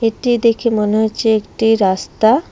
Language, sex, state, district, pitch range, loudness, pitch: Bengali, female, Assam, Hailakandi, 215-230 Hz, -15 LUFS, 225 Hz